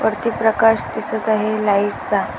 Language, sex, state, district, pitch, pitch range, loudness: Marathi, female, Maharashtra, Dhule, 220 Hz, 210-225 Hz, -18 LUFS